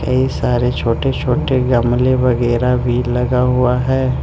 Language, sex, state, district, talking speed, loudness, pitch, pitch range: Hindi, male, Arunachal Pradesh, Lower Dibang Valley, 140 wpm, -15 LUFS, 125 Hz, 125-130 Hz